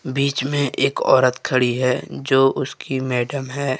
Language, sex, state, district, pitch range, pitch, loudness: Hindi, male, Jharkhand, Deoghar, 130-140 Hz, 130 Hz, -20 LUFS